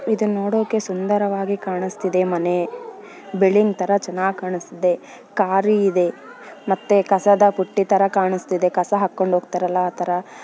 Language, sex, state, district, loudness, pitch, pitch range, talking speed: Kannada, female, Karnataka, Bellary, -20 LUFS, 195 Hz, 180-205 Hz, 120 wpm